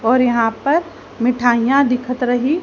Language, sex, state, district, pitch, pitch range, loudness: Hindi, female, Haryana, Jhajjar, 250 Hz, 240-275 Hz, -16 LUFS